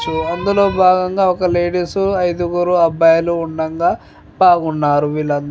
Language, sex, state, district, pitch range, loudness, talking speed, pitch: Telugu, female, Telangana, Nalgonda, 160-185 Hz, -15 LUFS, 130 wpm, 175 Hz